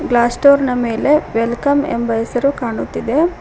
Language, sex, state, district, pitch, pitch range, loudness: Kannada, female, Karnataka, Koppal, 250 Hz, 235-285 Hz, -16 LUFS